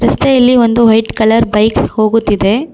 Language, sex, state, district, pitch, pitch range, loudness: Kannada, female, Karnataka, Bangalore, 225 Hz, 220-235 Hz, -10 LUFS